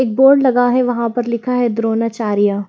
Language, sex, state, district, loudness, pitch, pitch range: Hindi, female, Haryana, Jhajjar, -15 LUFS, 235 Hz, 225-250 Hz